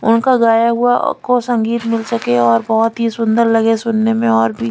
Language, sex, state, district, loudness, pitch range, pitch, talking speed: Hindi, female, Chandigarh, Chandigarh, -14 LUFS, 220-235 Hz, 225 Hz, 215 wpm